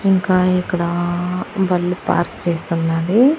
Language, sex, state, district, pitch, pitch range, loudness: Telugu, female, Andhra Pradesh, Annamaya, 180 Hz, 175-185 Hz, -18 LUFS